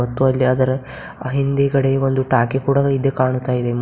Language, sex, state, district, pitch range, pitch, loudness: Kannada, female, Karnataka, Bidar, 130-135 Hz, 130 Hz, -18 LUFS